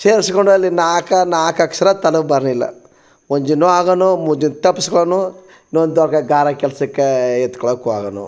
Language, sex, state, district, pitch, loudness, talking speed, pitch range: Kannada, male, Karnataka, Chamarajanagar, 160 Hz, -15 LUFS, 125 wpm, 140-185 Hz